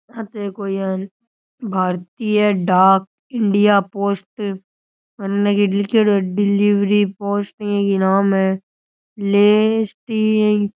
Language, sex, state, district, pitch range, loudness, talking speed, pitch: Rajasthani, male, Rajasthan, Nagaur, 195-210 Hz, -17 LUFS, 110 wpm, 205 Hz